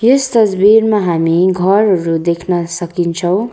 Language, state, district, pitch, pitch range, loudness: Nepali, West Bengal, Darjeeling, 185 Hz, 170-215 Hz, -13 LUFS